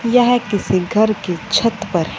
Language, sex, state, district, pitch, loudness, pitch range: Hindi, female, Punjab, Fazilka, 215 Hz, -17 LUFS, 185-230 Hz